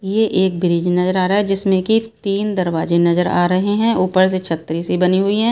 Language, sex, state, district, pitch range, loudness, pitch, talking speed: Hindi, female, Bihar, Katihar, 180-200 Hz, -17 LUFS, 185 Hz, 240 wpm